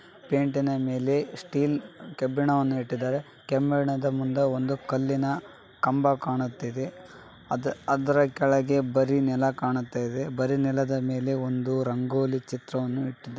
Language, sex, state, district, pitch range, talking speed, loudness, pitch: Kannada, male, Karnataka, Raichur, 130-140 Hz, 105 wpm, -27 LUFS, 135 Hz